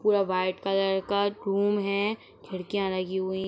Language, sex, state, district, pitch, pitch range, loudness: Hindi, female, Uttar Pradesh, Etah, 195 Hz, 190-200 Hz, -27 LUFS